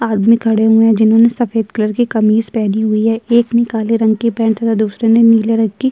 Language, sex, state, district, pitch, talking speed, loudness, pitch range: Hindi, female, Uttar Pradesh, Jyotiba Phule Nagar, 225 Hz, 255 wpm, -13 LUFS, 220-230 Hz